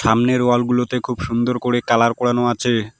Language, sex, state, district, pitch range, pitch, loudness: Bengali, male, West Bengal, Alipurduar, 115-125 Hz, 120 Hz, -18 LUFS